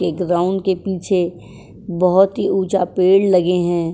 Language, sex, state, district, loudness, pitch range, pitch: Hindi, female, Uttar Pradesh, Jyotiba Phule Nagar, -17 LUFS, 175-195 Hz, 185 Hz